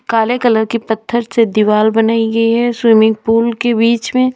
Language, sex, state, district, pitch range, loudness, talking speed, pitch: Hindi, female, Uttar Pradesh, Lalitpur, 220-235 Hz, -13 LUFS, 190 wpm, 230 Hz